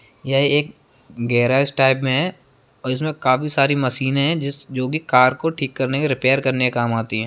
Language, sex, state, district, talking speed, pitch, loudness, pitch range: Hindi, male, Bihar, Darbhanga, 215 wpm, 135 Hz, -19 LUFS, 130-140 Hz